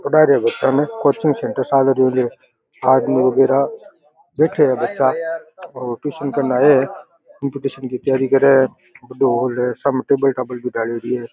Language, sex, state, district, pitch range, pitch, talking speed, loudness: Rajasthani, male, Rajasthan, Nagaur, 125-145 Hz, 135 Hz, 100 wpm, -17 LUFS